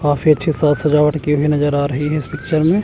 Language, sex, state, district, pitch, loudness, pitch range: Hindi, male, Chandigarh, Chandigarh, 150 Hz, -16 LUFS, 145-155 Hz